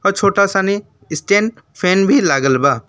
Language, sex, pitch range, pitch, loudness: Bhojpuri, male, 140-200 Hz, 190 Hz, -15 LUFS